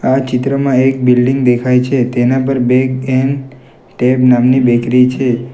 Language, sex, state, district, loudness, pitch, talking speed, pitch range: Gujarati, male, Gujarat, Valsad, -12 LUFS, 130 Hz, 150 wpm, 125-130 Hz